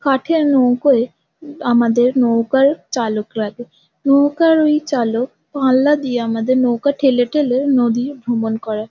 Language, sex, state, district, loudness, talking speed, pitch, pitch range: Bengali, female, West Bengal, Jhargram, -16 LUFS, 120 wpm, 255 Hz, 235-280 Hz